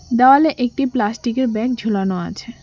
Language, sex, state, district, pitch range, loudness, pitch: Bengali, female, West Bengal, Cooch Behar, 225-260 Hz, -17 LUFS, 245 Hz